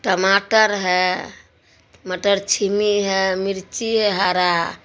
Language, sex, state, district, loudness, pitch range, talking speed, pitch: Hindi, female, Bihar, Supaul, -18 LUFS, 185-205 Hz, 100 wpm, 195 Hz